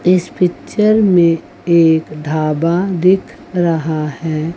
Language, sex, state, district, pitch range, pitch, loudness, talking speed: Hindi, female, Chandigarh, Chandigarh, 160-180 Hz, 170 Hz, -15 LUFS, 105 wpm